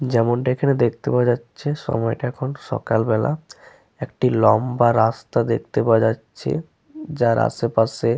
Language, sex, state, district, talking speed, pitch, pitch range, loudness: Bengali, male, West Bengal, Malda, 125 wpm, 120 Hz, 115-135 Hz, -20 LUFS